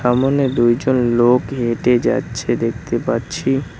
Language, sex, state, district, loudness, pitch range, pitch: Bengali, male, West Bengal, Cooch Behar, -17 LUFS, 120-135 Hz, 125 Hz